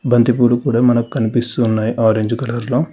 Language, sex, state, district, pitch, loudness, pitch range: Telugu, male, Telangana, Hyderabad, 120 Hz, -16 LUFS, 115-120 Hz